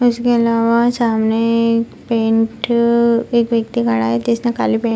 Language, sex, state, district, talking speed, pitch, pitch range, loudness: Hindi, female, Bihar, Purnia, 155 wpm, 230 Hz, 230-235 Hz, -16 LUFS